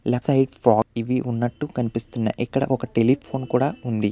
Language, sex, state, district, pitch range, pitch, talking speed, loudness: Telugu, male, Andhra Pradesh, Visakhapatnam, 115-130 Hz, 125 Hz, 85 wpm, -23 LUFS